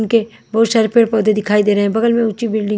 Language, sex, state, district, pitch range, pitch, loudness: Hindi, female, Maharashtra, Mumbai Suburban, 210-230 Hz, 220 Hz, -15 LUFS